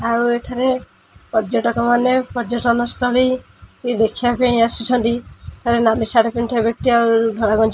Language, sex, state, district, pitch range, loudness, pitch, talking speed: Odia, female, Odisha, Khordha, 230-245 Hz, -17 LUFS, 235 Hz, 140 wpm